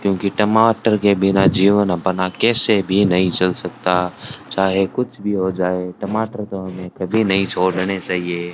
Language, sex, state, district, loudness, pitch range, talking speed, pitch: Hindi, male, Rajasthan, Bikaner, -17 LUFS, 90-105 Hz, 160 wpm, 95 Hz